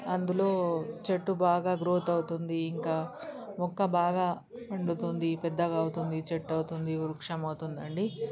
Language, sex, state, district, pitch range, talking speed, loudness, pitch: Telugu, female, Telangana, Karimnagar, 160-185 Hz, 115 wpm, -31 LUFS, 170 Hz